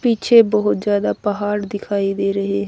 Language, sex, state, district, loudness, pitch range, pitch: Hindi, female, Haryana, Rohtak, -18 LUFS, 195-210 Hz, 205 Hz